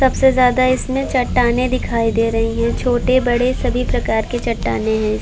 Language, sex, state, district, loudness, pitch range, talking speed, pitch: Hindi, female, Uttar Pradesh, Varanasi, -17 LUFS, 225-255 Hz, 170 wpm, 245 Hz